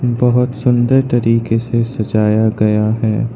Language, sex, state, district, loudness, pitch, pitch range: Hindi, male, Arunachal Pradesh, Lower Dibang Valley, -14 LUFS, 115 Hz, 110-125 Hz